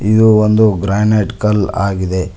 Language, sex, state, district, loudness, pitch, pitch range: Kannada, male, Karnataka, Koppal, -13 LUFS, 105 Hz, 95-110 Hz